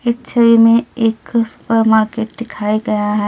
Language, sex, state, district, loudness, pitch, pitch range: Hindi, female, Delhi, New Delhi, -14 LUFS, 225 Hz, 215-235 Hz